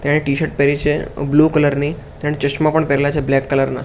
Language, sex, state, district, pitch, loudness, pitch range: Gujarati, male, Gujarat, Gandhinagar, 145 Hz, -17 LUFS, 140-150 Hz